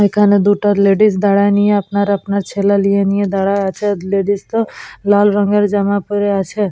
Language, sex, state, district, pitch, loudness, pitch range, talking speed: Bengali, female, West Bengal, Purulia, 200 Hz, -14 LUFS, 200-205 Hz, 170 wpm